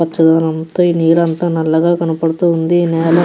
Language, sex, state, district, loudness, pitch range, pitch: Telugu, female, Andhra Pradesh, Krishna, -13 LUFS, 160-170 Hz, 165 Hz